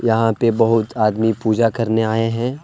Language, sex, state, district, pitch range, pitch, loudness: Hindi, male, Jharkhand, Deoghar, 110-115 Hz, 115 Hz, -17 LUFS